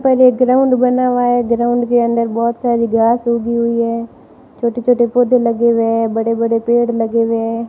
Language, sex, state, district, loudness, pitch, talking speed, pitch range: Hindi, female, Rajasthan, Barmer, -14 LUFS, 235 Hz, 210 wpm, 230-245 Hz